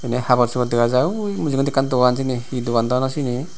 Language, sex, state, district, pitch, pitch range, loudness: Chakma, male, Tripura, Unakoti, 125 Hz, 125-135 Hz, -19 LUFS